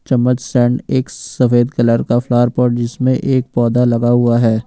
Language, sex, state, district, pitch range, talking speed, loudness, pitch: Hindi, male, Jharkhand, Ranchi, 120-125 Hz, 180 wpm, -14 LUFS, 120 Hz